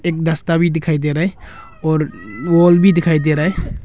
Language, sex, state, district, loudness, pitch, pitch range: Hindi, male, Arunachal Pradesh, Longding, -15 LUFS, 165 Hz, 155-175 Hz